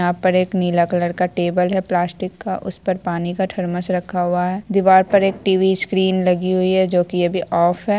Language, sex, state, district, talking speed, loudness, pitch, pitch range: Hindi, female, Bihar, Saharsa, 235 wpm, -18 LUFS, 185 Hz, 175-190 Hz